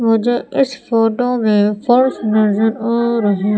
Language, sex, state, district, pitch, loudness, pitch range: Hindi, female, Madhya Pradesh, Umaria, 225 Hz, -15 LUFS, 215-240 Hz